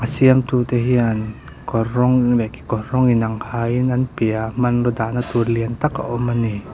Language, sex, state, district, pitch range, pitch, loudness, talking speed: Mizo, male, Mizoram, Aizawl, 115-125 Hz, 120 Hz, -19 LUFS, 180 wpm